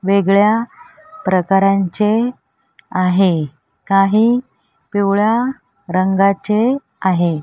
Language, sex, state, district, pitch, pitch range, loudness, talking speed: Marathi, female, Maharashtra, Mumbai Suburban, 200 Hz, 190-240 Hz, -16 LUFS, 55 wpm